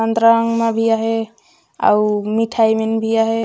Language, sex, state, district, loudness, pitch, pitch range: Chhattisgarhi, female, Chhattisgarh, Raigarh, -16 LUFS, 225 Hz, 220-225 Hz